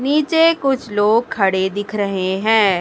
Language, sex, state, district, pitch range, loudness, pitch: Hindi, female, Chhattisgarh, Raipur, 195-270 Hz, -17 LUFS, 210 Hz